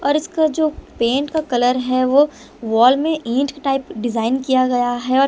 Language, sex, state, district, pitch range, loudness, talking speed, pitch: Hindi, female, Bihar, Patna, 245-290 Hz, -18 LUFS, 195 wpm, 260 Hz